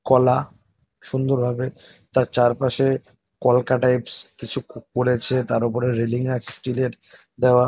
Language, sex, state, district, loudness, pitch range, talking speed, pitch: Bengali, male, West Bengal, North 24 Parganas, -21 LUFS, 120-130 Hz, 135 wpm, 125 Hz